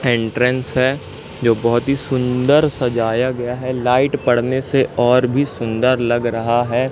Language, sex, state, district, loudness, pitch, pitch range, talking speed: Hindi, male, Madhya Pradesh, Katni, -17 LUFS, 125 Hz, 120-130 Hz, 155 wpm